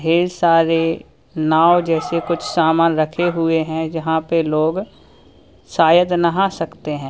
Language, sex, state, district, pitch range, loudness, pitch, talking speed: Hindi, male, Uttar Pradesh, Lalitpur, 160-170 Hz, -17 LUFS, 165 Hz, 135 wpm